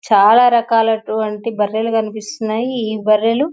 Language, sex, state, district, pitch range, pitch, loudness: Telugu, female, Telangana, Nalgonda, 215-230 Hz, 220 Hz, -16 LUFS